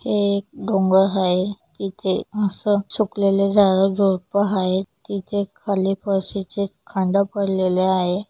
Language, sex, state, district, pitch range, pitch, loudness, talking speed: Marathi, female, Maharashtra, Solapur, 190-200 Hz, 195 Hz, -20 LUFS, 100 wpm